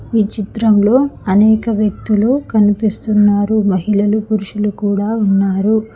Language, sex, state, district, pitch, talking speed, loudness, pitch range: Telugu, female, Telangana, Hyderabad, 210 Hz, 90 wpm, -14 LUFS, 205-220 Hz